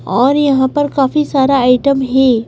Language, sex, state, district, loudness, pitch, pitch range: Hindi, female, Madhya Pradesh, Bhopal, -12 LUFS, 270 Hz, 255-280 Hz